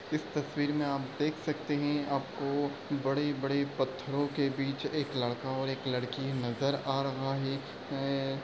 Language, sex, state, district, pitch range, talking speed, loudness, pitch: Hindi, male, Bihar, Darbhanga, 135-145 Hz, 165 wpm, -33 LUFS, 140 Hz